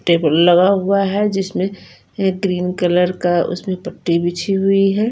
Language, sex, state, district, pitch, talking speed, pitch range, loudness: Hindi, female, Punjab, Fazilka, 185 Hz, 165 wpm, 175-195 Hz, -17 LUFS